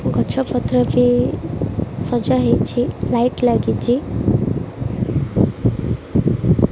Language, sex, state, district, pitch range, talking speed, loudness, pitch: Odia, female, Odisha, Malkangiri, 120-150 Hz, 45 wpm, -19 LUFS, 125 Hz